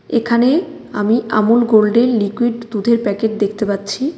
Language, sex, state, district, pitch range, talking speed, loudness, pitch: Bengali, female, West Bengal, Cooch Behar, 210-240 Hz, 145 wpm, -15 LUFS, 225 Hz